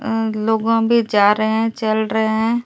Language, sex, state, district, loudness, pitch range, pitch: Hindi, female, Delhi, New Delhi, -17 LUFS, 220-225 Hz, 220 Hz